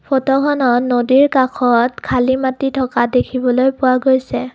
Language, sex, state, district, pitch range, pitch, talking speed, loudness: Assamese, female, Assam, Kamrup Metropolitan, 250-265 Hz, 260 Hz, 120 wpm, -15 LUFS